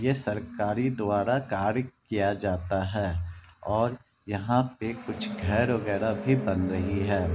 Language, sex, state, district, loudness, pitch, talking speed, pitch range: Hindi, male, Bihar, Kishanganj, -28 LUFS, 105 Hz, 145 wpm, 100-120 Hz